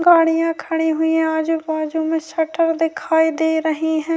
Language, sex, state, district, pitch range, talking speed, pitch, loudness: Urdu, female, Bihar, Saharsa, 320-325 Hz, 170 wpm, 320 Hz, -19 LUFS